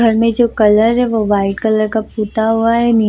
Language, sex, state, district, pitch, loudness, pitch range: Hindi, female, Bihar, Samastipur, 220 Hz, -14 LUFS, 215-230 Hz